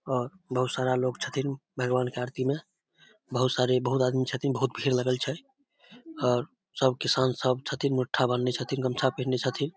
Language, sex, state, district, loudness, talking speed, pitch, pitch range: Maithili, male, Bihar, Samastipur, -28 LUFS, 185 wpm, 130 Hz, 125-135 Hz